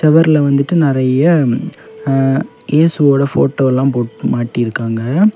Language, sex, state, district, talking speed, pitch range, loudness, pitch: Tamil, male, Tamil Nadu, Kanyakumari, 90 wpm, 130-155 Hz, -14 LUFS, 140 Hz